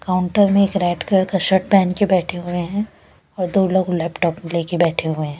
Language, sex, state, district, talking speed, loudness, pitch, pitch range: Hindi, female, Bihar, West Champaran, 220 wpm, -18 LUFS, 180 Hz, 170-195 Hz